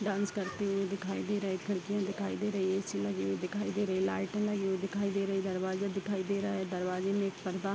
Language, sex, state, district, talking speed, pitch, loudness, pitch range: Hindi, female, Bihar, Vaishali, 280 wpm, 195 Hz, -34 LUFS, 190-200 Hz